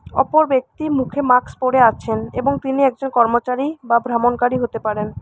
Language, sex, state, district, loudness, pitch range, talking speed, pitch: Bengali, female, West Bengal, Alipurduar, -18 LUFS, 235-270 Hz, 150 wpm, 250 Hz